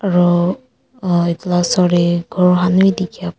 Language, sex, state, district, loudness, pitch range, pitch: Nagamese, female, Nagaland, Kohima, -15 LUFS, 175-185 Hz, 180 Hz